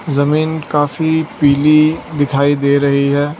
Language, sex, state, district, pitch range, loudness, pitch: Hindi, male, Gujarat, Valsad, 140-155 Hz, -14 LUFS, 145 Hz